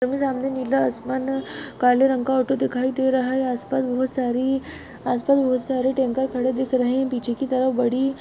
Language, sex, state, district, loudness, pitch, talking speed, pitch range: Hindi, female, Chhattisgarh, Bastar, -22 LUFS, 260 Hz, 195 wpm, 255-265 Hz